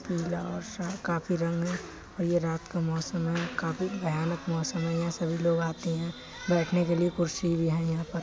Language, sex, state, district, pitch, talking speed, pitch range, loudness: Hindi, female, Uttar Pradesh, Etah, 170 Hz, 220 wpm, 165-175 Hz, -30 LUFS